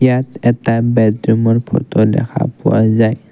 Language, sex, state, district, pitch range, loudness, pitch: Assamese, male, Assam, Kamrup Metropolitan, 110-125 Hz, -14 LUFS, 115 Hz